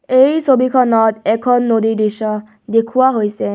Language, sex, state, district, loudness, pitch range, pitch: Assamese, female, Assam, Kamrup Metropolitan, -14 LUFS, 215-255 Hz, 225 Hz